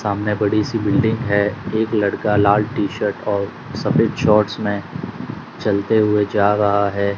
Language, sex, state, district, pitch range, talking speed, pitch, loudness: Hindi, male, Gujarat, Gandhinagar, 100-110 Hz, 160 wpm, 105 Hz, -18 LUFS